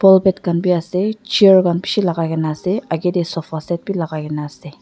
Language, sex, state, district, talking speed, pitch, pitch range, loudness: Nagamese, female, Nagaland, Dimapur, 210 wpm, 175 Hz, 160-190 Hz, -17 LUFS